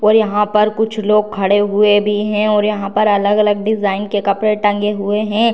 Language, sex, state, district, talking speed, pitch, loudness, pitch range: Hindi, female, Bihar, Darbhanga, 205 wpm, 210 Hz, -15 LUFS, 205-215 Hz